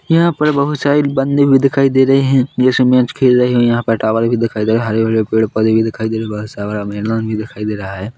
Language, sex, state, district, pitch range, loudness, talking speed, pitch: Hindi, male, Chhattisgarh, Korba, 110-135 Hz, -14 LUFS, 295 wpm, 115 Hz